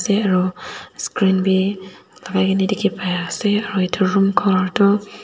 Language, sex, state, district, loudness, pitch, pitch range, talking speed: Nagamese, female, Nagaland, Dimapur, -18 LUFS, 190 Hz, 185-205 Hz, 160 wpm